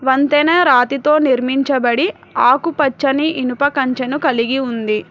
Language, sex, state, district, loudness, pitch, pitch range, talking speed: Telugu, female, Telangana, Hyderabad, -15 LUFS, 270 Hz, 250-290 Hz, 95 wpm